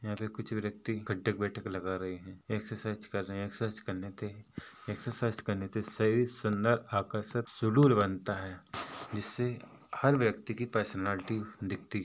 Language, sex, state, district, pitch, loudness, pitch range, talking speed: Hindi, male, Chhattisgarh, Rajnandgaon, 105 Hz, -34 LUFS, 100-115 Hz, 160 wpm